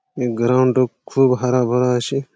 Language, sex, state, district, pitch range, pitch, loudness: Bengali, male, West Bengal, Malda, 125-130 Hz, 125 Hz, -18 LUFS